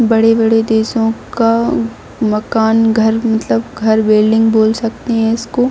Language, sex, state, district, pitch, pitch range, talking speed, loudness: Hindi, female, Jharkhand, Jamtara, 225 Hz, 220-225 Hz, 125 wpm, -13 LUFS